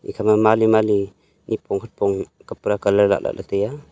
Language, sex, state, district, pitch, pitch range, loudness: Wancho, male, Arunachal Pradesh, Longding, 100 Hz, 100-110 Hz, -20 LUFS